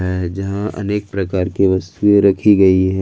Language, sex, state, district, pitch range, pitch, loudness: Hindi, male, Jharkhand, Ranchi, 95-100 Hz, 95 Hz, -15 LUFS